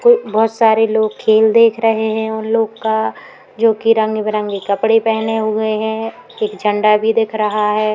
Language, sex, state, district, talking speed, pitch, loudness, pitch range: Hindi, female, Uttar Pradesh, Muzaffarnagar, 190 wpm, 220 Hz, -15 LUFS, 215-225 Hz